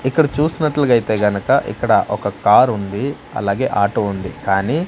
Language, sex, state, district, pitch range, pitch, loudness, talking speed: Telugu, male, Andhra Pradesh, Manyam, 100-150 Hz, 125 Hz, -17 LUFS, 135 wpm